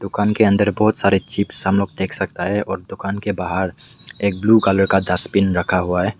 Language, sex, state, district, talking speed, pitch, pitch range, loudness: Hindi, male, Meghalaya, West Garo Hills, 220 wpm, 100 Hz, 95-100 Hz, -18 LUFS